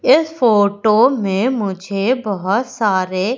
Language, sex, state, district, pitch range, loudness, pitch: Hindi, female, Madhya Pradesh, Umaria, 195-245 Hz, -16 LUFS, 215 Hz